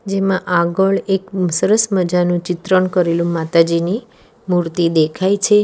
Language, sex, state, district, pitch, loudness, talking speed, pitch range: Gujarati, female, Gujarat, Valsad, 185 Hz, -16 LUFS, 115 wpm, 170-195 Hz